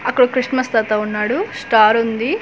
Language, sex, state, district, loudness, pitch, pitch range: Telugu, female, Andhra Pradesh, Manyam, -16 LUFS, 230 Hz, 220-255 Hz